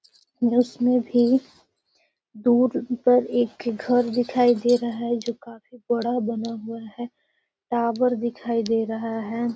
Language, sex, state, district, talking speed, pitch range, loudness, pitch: Magahi, female, Bihar, Gaya, 130 wpm, 230-245 Hz, -23 LUFS, 240 Hz